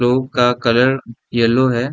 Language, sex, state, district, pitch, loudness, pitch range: Hindi, male, Bihar, Saran, 120 Hz, -16 LUFS, 120-130 Hz